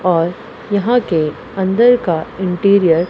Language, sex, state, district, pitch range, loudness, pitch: Hindi, female, Punjab, Pathankot, 170-235 Hz, -15 LUFS, 190 Hz